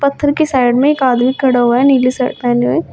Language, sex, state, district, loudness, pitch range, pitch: Hindi, female, Uttar Pradesh, Shamli, -13 LUFS, 245-280 Hz, 255 Hz